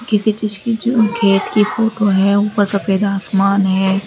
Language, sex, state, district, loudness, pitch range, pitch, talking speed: Hindi, female, Uttar Pradesh, Lalitpur, -15 LUFS, 195-215 Hz, 205 Hz, 175 wpm